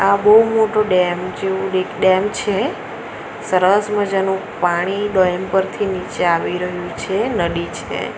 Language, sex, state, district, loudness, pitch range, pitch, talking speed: Gujarati, female, Gujarat, Valsad, -17 LUFS, 180-200 Hz, 190 Hz, 140 wpm